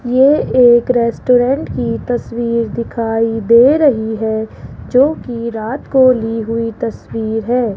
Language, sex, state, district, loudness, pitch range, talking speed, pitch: Hindi, female, Rajasthan, Jaipur, -14 LUFS, 225-250 Hz, 130 wpm, 235 Hz